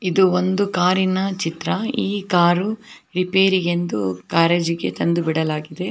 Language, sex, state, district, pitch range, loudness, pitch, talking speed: Kannada, female, Karnataka, Belgaum, 170-190 Hz, -20 LUFS, 180 Hz, 100 wpm